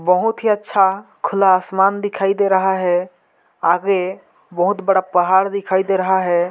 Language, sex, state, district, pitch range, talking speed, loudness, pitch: Hindi, male, Chhattisgarh, Jashpur, 180-195 Hz, 155 wpm, -17 LUFS, 190 Hz